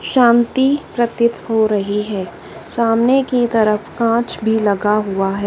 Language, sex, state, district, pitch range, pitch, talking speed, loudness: Hindi, female, Madhya Pradesh, Dhar, 210-240 Hz, 225 Hz, 140 wpm, -16 LUFS